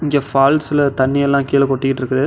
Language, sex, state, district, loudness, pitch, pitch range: Tamil, male, Tamil Nadu, Namakkal, -15 LUFS, 140 Hz, 135-140 Hz